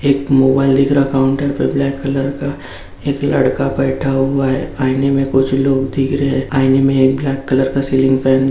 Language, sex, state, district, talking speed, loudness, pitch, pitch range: Hindi, male, Bihar, Gaya, 210 wpm, -15 LUFS, 135 Hz, 135-140 Hz